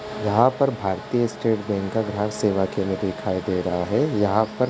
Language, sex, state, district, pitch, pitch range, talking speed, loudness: Hindi, male, Uttar Pradesh, Ghazipur, 105 Hz, 95-115 Hz, 190 wpm, -23 LUFS